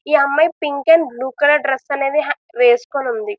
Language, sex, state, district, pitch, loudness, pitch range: Telugu, female, Andhra Pradesh, Visakhapatnam, 300 Hz, -16 LUFS, 280-335 Hz